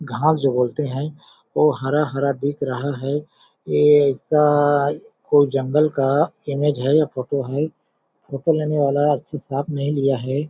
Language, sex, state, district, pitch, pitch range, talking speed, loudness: Hindi, male, Chhattisgarh, Balrampur, 145 Hz, 135-150 Hz, 160 wpm, -20 LUFS